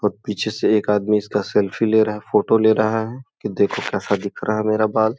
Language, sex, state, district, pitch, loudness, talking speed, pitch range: Hindi, male, Uttar Pradesh, Gorakhpur, 105 Hz, -19 LUFS, 265 wpm, 105-110 Hz